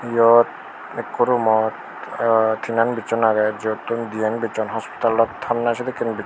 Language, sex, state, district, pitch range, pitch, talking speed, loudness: Chakma, male, Tripura, Unakoti, 110-115 Hz, 115 Hz, 135 wpm, -20 LUFS